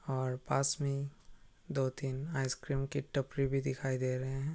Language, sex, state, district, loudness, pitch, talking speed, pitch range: Hindi, male, Bihar, Purnia, -36 LUFS, 135 Hz, 160 wpm, 130-140 Hz